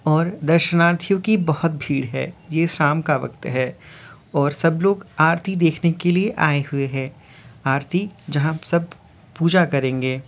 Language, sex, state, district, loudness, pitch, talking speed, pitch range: Hindi, male, Uttar Pradesh, Varanasi, -20 LUFS, 160 Hz, 160 wpm, 140-170 Hz